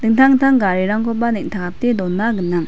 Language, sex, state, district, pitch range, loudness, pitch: Garo, female, Meghalaya, South Garo Hills, 185-240 Hz, -16 LUFS, 225 Hz